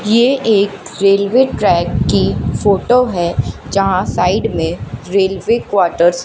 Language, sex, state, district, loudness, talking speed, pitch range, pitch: Hindi, female, Madhya Pradesh, Katni, -14 LUFS, 125 wpm, 185-230 Hz, 195 Hz